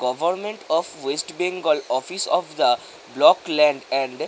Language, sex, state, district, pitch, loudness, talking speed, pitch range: Bengali, male, West Bengal, North 24 Parganas, 155 Hz, -21 LUFS, 155 wpm, 135-180 Hz